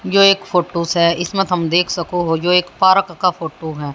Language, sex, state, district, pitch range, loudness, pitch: Hindi, female, Haryana, Jhajjar, 170-185 Hz, -16 LUFS, 175 Hz